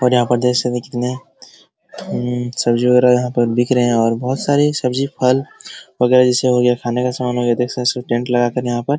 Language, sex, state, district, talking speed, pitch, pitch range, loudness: Hindi, male, Bihar, Araria, 225 wpm, 125 Hz, 120-125 Hz, -16 LUFS